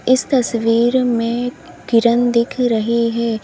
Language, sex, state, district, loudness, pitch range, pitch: Hindi, female, Uttar Pradesh, Lalitpur, -16 LUFS, 230-250 Hz, 235 Hz